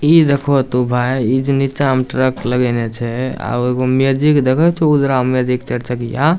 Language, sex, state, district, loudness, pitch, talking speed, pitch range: Maithili, male, Bihar, Samastipur, -15 LUFS, 130 Hz, 190 wpm, 125-140 Hz